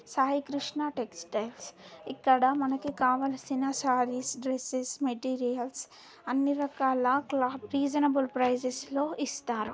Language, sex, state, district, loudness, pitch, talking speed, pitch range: Telugu, female, Telangana, Karimnagar, -30 LUFS, 265 Hz, 100 wpm, 250-280 Hz